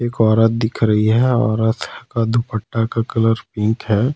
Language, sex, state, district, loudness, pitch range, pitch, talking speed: Hindi, male, Jharkhand, Ranchi, -18 LUFS, 110-115 Hz, 115 Hz, 175 wpm